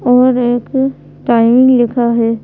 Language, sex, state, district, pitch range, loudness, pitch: Hindi, female, Madhya Pradesh, Bhopal, 235-255 Hz, -12 LUFS, 245 Hz